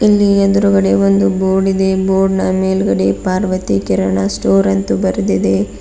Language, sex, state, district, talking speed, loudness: Kannada, female, Karnataka, Bidar, 135 wpm, -14 LUFS